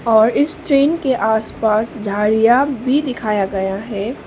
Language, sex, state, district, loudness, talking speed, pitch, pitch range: Hindi, female, Sikkim, Gangtok, -17 LUFS, 140 wpm, 225 Hz, 215-270 Hz